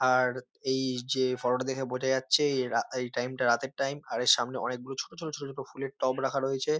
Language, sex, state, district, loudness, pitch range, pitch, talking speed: Bengali, male, West Bengal, North 24 Parganas, -30 LUFS, 125-135 Hz, 130 Hz, 240 wpm